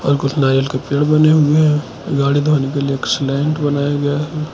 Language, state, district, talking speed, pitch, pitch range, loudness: Hindi, Arunachal Pradesh, Lower Dibang Valley, 210 wpm, 145 Hz, 140-150 Hz, -16 LUFS